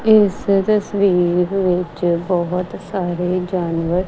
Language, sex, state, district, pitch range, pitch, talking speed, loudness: Punjabi, female, Punjab, Kapurthala, 175-195 Hz, 180 Hz, 90 wpm, -18 LUFS